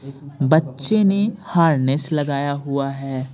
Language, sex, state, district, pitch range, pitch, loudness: Hindi, male, Bihar, Patna, 135-165 Hz, 140 Hz, -20 LUFS